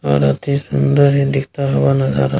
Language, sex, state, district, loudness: Hindi, male, Bihar, Kishanganj, -15 LUFS